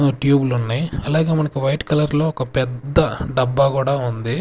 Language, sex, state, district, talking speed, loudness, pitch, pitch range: Telugu, male, Andhra Pradesh, Sri Satya Sai, 165 wpm, -19 LUFS, 140 Hz, 130-150 Hz